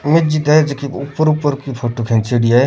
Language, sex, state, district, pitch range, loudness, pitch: Rajasthani, male, Rajasthan, Churu, 120-155 Hz, -16 LUFS, 140 Hz